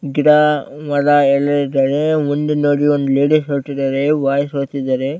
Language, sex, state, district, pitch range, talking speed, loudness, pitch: Kannada, male, Karnataka, Bellary, 140-150 Hz, 140 wpm, -15 LUFS, 145 Hz